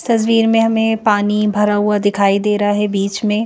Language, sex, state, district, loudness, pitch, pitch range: Hindi, female, Madhya Pradesh, Bhopal, -15 LUFS, 210 Hz, 205-225 Hz